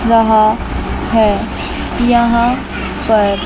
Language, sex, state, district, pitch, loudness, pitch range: Hindi, female, Chandigarh, Chandigarh, 225 Hz, -14 LUFS, 215-235 Hz